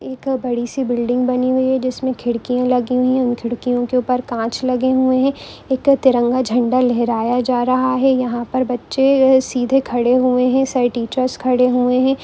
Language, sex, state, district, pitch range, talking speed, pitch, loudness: Hindi, female, Andhra Pradesh, Chittoor, 245-260 Hz, 185 wpm, 255 Hz, -17 LUFS